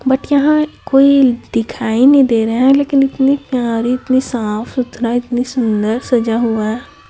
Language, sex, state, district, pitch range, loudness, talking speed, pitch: Hindi, female, Chhattisgarh, Raipur, 230-270 Hz, -14 LUFS, 150 wpm, 250 Hz